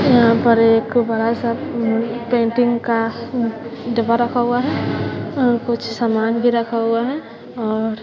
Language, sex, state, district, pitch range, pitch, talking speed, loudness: Hindi, female, Bihar, West Champaran, 230-240 Hz, 235 Hz, 140 wpm, -18 LUFS